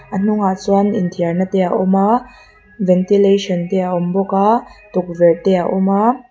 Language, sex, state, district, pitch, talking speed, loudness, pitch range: Mizo, female, Mizoram, Aizawl, 195 Hz, 180 wpm, -15 LUFS, 180-205 Hz